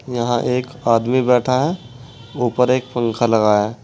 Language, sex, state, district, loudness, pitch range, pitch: Hindi, male, Uttar Pradesh, Saharanpur, -18 LUFS, 115-130 Hz, 125 Hz